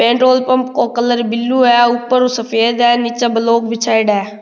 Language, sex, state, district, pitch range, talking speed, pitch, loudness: Rajasthani, male, Rajasthan, Nagaur, 230-245 Hz, 175 wpm, 240 Hz, -13 LUFS